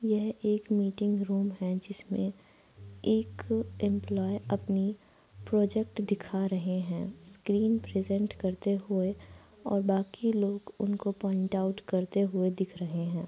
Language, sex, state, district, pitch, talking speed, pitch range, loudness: Hindi, female, Bihar, Araria, 195 Hz, 130 wpm, 185-205 Hz, -31 LUFS